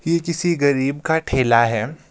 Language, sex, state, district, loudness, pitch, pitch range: Hindi, male, Himachal Pradesh, Shimla, -19 LUFS, 145 Hz, 130-170 Hz